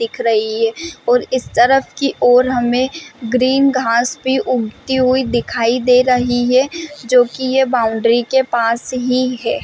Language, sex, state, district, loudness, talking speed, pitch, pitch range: Hindi, female, Chhattisgarh, Bastar, -15 LUFS, 150 wpm, 250 Hz, 240-265 Hz